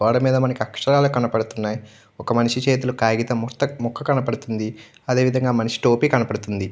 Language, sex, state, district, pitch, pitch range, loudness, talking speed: Telugu, male, Andhra Pradesh, Chittoor, 120 Hz, 110-130 Hz, -21 LUFS, 150 wpm